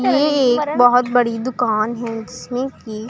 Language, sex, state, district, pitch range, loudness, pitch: Hindi, female, Punjab, Pathankot, 230-255 Hz, -17 LUFS, 245 Hz